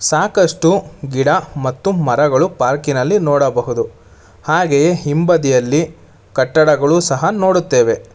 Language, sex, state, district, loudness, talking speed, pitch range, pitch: Kannada, male, Karnataka, Bangalore, -15 LUFS, 80 wpm, 135-170 Hz, 150 Hz